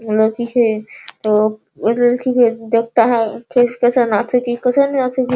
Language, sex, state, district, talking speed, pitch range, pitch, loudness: Hindi, female, Bihar, Sitamarhi, 110 wpm, 225-250 Hz, 240 Hz, -16 LUFS